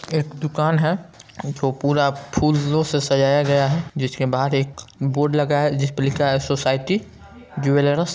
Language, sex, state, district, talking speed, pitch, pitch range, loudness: Hindi, male, Bihar, Saran, 160 wpm, 145 Hz, 140-155 Hz, -20 LUFS